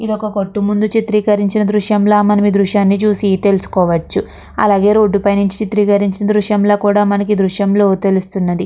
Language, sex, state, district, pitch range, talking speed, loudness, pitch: Telugu, female, Andhra Pradesh, Krishna, 200-210 Hz, 160 wpm, -13 LUFS, 205 Hz